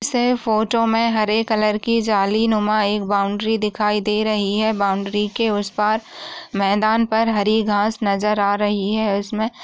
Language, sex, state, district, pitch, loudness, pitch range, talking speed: Hindi, female, Maharashtra, Solapur, 215 Hz, -19 LUFS, 205-225 Hz, 180 wpm